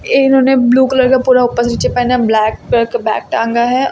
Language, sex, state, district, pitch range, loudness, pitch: Hindi, female, Uttar Pradesh, Lucknow, 235-260 Hz, -12 LUFS, 245 Hz